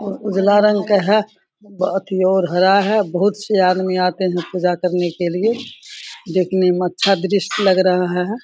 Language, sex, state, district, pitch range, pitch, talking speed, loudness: Hindi, female, Bihar, Samastipur, 180-205 Hz, 190 Hz, 190 wpm, -17 LUFS